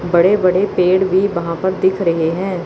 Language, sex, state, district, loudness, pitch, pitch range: Hindi, female, Chandigarh, Chandigarh, -15 LUFS, 185 Hz, 175-190 Hz